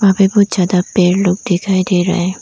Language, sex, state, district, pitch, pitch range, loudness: Hindi, female, Arunachal Pradesh, Lower Dibang Valley, 185 Hz, 180-195 Hz, -14 LUFS